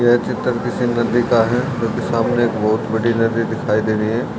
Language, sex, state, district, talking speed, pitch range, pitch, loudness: Hindi, male, Bihar, Lakhisarai, 230 wpm, 110-120 Hz, 115 Hz, -18 LUFS